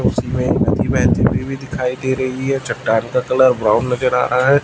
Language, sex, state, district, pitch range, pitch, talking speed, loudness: Hindi, male, Chhattisgarh, Raipur, 125-130 Hz, 130 Hz, 180 wpm, -17 LUFS